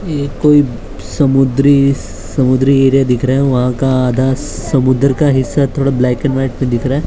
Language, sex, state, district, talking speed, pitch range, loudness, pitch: Hindi, male, Maharashtra, Mumbai Suburban, 185 wpm, 125-140 Hz, -13 LUFS, 135 Hz